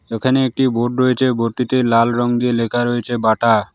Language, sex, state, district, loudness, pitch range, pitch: Bengali, male, West Bengal, Alipurduar, -17 LUFS, 115-125 Hz, 120 Hz